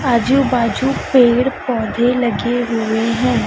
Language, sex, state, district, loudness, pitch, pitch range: Hindi, female, Chhattisgarh, Raipur, -16 LUFS, 245 Hz, 230-255 Hz